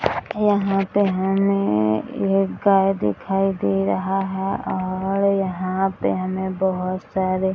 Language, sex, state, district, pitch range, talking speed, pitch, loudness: Hindi, female, Bihar, Gaya, 185-195 Hz, 125 wpm, 190 Hz, -21 LUFS